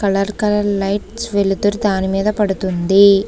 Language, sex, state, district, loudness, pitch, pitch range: Telugu, female, Telangana, Hyderabad, -16 LUFS, 200 Hz, 195-210 Hz